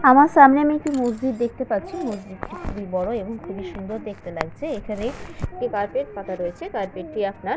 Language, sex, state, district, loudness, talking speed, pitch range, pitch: Bengali, female, West Bengal, Malda, -22 LUFS, 190 wpm, 190-265 Hz, 215 Hz